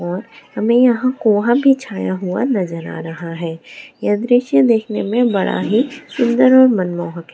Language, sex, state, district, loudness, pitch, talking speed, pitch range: Hindi, female, Bihar, Bhagalpur, -16 LUFS, 220 Hz, 180 wpm, 175-250 Hz